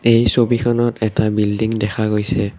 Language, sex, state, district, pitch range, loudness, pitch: Assamese, male, Assam, Kamrup Metropolitan, 105-120 Hz, -17 LUFS, 110 Hz